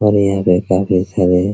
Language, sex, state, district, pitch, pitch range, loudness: Hindi, male, Bihar, Araria, 95 Hz, 90-100 Hz, -15 LUFS